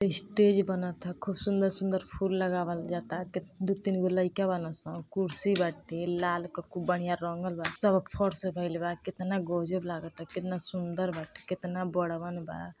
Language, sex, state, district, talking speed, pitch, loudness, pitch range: Hindi, female, Uttar Pradesh, Deoria, 160 wpm, 180 Hz, -31 LUFS, 175-190 Hz